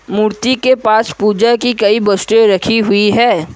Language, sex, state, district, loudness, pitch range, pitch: Hindi, male, Assam, Kamrup Metropolitan, -12 LUFS, 205-235 Hz, 215 Hz